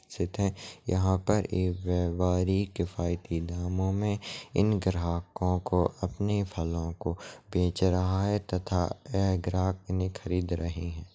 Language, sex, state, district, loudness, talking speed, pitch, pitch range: Hindi, male, Chhattisgarh, Raigarh, -30 LUFS, 125 wpm, 90 Hz, 90-95 Hz